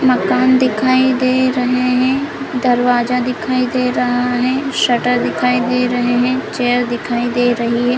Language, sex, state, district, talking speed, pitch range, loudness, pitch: Hindi, female, Chhattisgarh, Bilaspur, 160 wpm, 245-255 Hz, -15 LUFS, 250 Hz